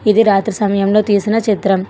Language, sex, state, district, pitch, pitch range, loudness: Telugu, female, Telangana, Hyderabad, 205 Hz, 200-215 Hz, -14 LUFS